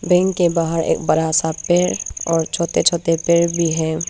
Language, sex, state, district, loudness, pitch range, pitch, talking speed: Hindi, female, Arunachal Pradesh, Papum Pare, -18 LUFS, 160-175 Hz, 170 Hz, 190 wpm